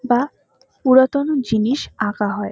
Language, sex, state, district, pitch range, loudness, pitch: Bengali, female, West Bengal, North 24 Parganas, 215-270 Hz, -18 LUFS, 255 Hz